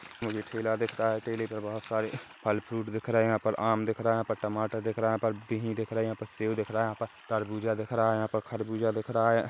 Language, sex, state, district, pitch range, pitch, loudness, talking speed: Hindi, male, Chhattisgarh, Kabirdham, 110-115 Hz, 110 Hz, -31 LUFS, 315 wpm